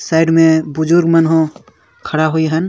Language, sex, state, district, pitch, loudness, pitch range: Sadri, male, Chhattisgarh, Jashpur, 160 Hz, -13 LUFS, 160-165 Hz